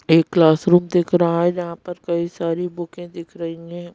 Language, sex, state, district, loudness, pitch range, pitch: Hindi, female, Madhya Pradesh, Bhopal, -19 LUFS, 170-175 Hz, 175 Hz